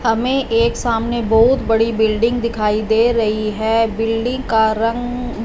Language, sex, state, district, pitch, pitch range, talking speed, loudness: Hindi, female, Punjab, Fazilka, 225 Hz, 220-235 Hz, 145 wpm, -17 LUFS